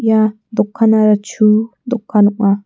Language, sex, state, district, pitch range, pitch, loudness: Garo, female, Meghalaya, West Garo Hills, 210-225 Hz, 215 Hz, -14 LUFS